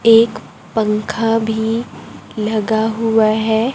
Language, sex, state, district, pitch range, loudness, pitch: Hindi, male, Chhattisgarh, Raipur, 215-225 Hz, -17 LUFS, 220 Hz